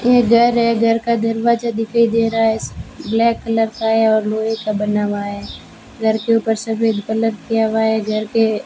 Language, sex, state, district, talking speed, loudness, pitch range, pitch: Hindi, female, Rajasthan, Bikaner, 215 wpm, -17 LUFS, 220-230 Hz, 225 Hz